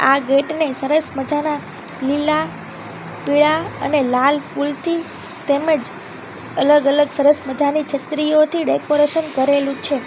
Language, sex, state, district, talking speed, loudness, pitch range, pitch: Gujarati, female, Gujarat, Valsad, 115 wpm, -18 LUFS, 275-305 Hz, 290 Hz